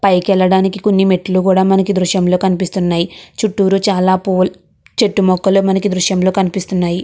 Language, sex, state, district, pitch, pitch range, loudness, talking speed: Telugu, female, Andhra Pradesh, Guntur, 190 Hz, 185-195 Hz, -14 LUFS, 145 wpm